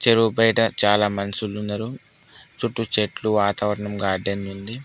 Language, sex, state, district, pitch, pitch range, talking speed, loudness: Telugu, male, Telangana, Mahabubabad, 105 Hz, 100-115 Hz, 125 wpm, -22 LUFS